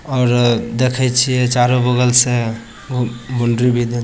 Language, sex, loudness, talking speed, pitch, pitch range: Bhojpuri, male, -15 LUFS, 150 wpm, 125 Hz, 120-125 Hz